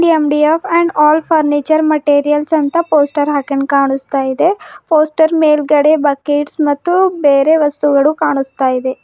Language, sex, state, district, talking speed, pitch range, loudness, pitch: Kannada, female, Karnataka, Bidar, 115 wpm, 285-315 Hz, -13 LUFS, 295 Hz